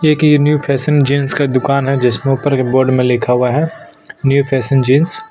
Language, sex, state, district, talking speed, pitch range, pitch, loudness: Hindi, male, Chhattisgarh, Sukma, 225 wpm, 130-145 Hz, 140 Hz, -13 LUFS